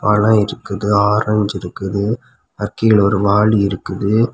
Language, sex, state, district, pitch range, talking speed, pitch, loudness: Tamil, male, Tamil Nadu, Kanyakumari, 100-105 Hz, 110 wpm, 105 Hz, -16 LUFS